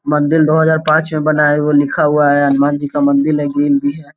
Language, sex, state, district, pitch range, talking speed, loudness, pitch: Hindi, male, Bihar, Saran, 145-155 Hz, 260 wpm, -13 LUFS, 150 Hz